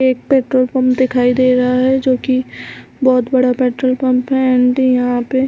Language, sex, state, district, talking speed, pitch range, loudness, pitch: Hindi, female, Chhattisgarh, Balrampur, 195 wpm, 250-260 Hz, -14 LUFS, 255 Hz